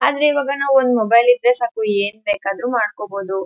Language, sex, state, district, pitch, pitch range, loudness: Kannada, female, Karnataka, Chamarajanagar, 235 Hz, 205-265 Hz, -17 LUFS